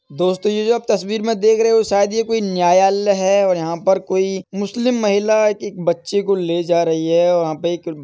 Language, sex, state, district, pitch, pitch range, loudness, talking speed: Hindi, male, Uttar Pradesh, Etah, 195 Hz, 175-210 Hz, -17 LUFS, 245 wpm